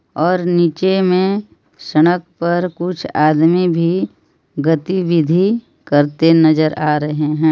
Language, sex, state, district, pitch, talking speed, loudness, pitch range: Hindi, female, Jharkhand, Palamu, 170 Hz, 110 wpm, -15 LUFS, 155-180 Hz